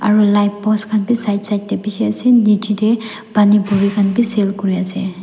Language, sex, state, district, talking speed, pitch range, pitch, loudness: Nagamese, female, Nagaland, Dimapur, 215 wpm, 200-215 Hz, 210 Hz, -15 LUFS